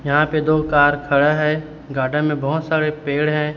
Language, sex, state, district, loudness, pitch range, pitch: Hindi, male, Chhattisgarh, Raipur, -18 LUFS, 145-155 Hz, 150 Hz